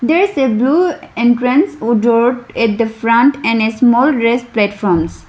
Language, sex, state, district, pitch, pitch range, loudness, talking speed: English, female, Arunachal Pradesh, Lower Dibang Valley, 235 Hz, 230-265 Hz, -13 LUFS, 170 wpm